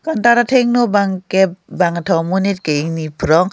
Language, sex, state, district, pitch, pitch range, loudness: Karbi, female, Assam, Karbi Anglong, 190 Hz, 165-215 Hz, -15 LUFS